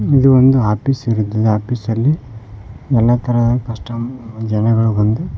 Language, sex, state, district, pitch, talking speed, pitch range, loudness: Kannada, male, Karnataka, Koppal, 115 Hz, 100 wpm, 110-125 Hz, -15 LUFS